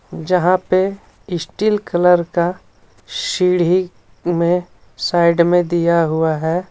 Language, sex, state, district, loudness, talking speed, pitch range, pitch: Hindi, male, Jharkhand, Ranchi, -17 LUFS, 105 wpm, 170-185 Hz, 175 Hz